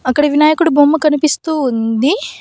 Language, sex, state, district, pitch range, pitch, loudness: Telugu, female, Andhra Pradesh, Annamaya, 275-310 Hz, 300 Hz, -13 LUFS